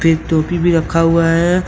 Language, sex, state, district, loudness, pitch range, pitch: Hindi, male, Jharkhand, Deoghar, -14 LUFS, 165-175 Hz, 165 Hz